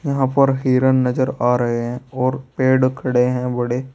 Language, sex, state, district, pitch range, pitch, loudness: Hindi, male, Uttar Pradesh, Saharanpur, 125-130 Hz, 130 Hz, -18 LUFS